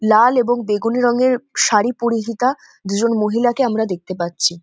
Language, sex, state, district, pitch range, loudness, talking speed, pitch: Bengali, female, West Bengal, North 24 Parganas, 210-245 Hz, -17 LUFS, 145 wpm, 230 Hz